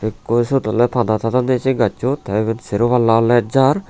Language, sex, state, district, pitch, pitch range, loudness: Chakma, male, Tripura, Unakoti, 120 Hz, 110-125 Hz, -17 LUFS